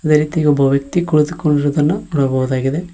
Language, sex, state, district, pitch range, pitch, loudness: Kannada, male, Karnataka, Koppal, 140-160 Hz, 150 Hz, -16 LUFS